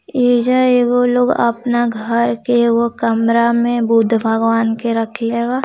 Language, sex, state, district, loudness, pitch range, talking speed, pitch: Hindi, female, Bihar, Gopalganj, -15 LUFS, 230-245 Hz, 140 wpm, 235 Hz